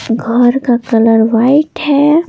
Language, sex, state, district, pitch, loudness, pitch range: Hindi, female, Bihar, Patna, 245 Hz, -11 LUFS, 230-290 Hz